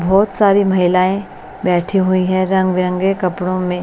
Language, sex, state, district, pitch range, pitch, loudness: Hindi, female, Bihar, West Champaran, 180-195 Hz, 185 Hz, -15 LUFS